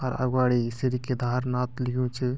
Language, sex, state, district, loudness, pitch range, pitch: Garhwali, male, Uttarakhand, Tehri Garhwal, -27 LUFS, 125-130 Hz, 125 Hz